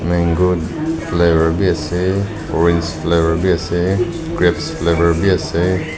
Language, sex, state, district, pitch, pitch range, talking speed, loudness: Nagamese, male, Nagaland, Dimapur, 85 Hz, 85-95 Hz, 120 wpm, -16 LUFS